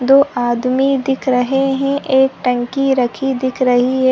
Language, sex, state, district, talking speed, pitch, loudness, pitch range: Hindi, female, Chhattisgarh, Sarguja, 160 wpm, 265 Hz, -15 LUFS, 250-270 Hz